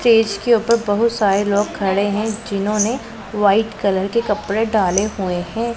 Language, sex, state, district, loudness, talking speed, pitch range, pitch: Hindi, female, Punjab, Pathankot, -18 LUFS, 165 wpm, 200-225 Hz, 210 Hz